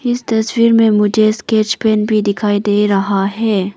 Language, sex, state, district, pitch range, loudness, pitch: Hindi, female, Arunachal Pradesh, Papum Pare, 205-220 Hz, -14 LUFS, 215 Hz